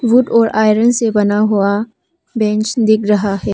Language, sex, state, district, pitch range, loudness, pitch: Hindi, female, Arunachal Pradesh, Papum Pare, 210-230 Hz, -14 LUFS, 220 Hz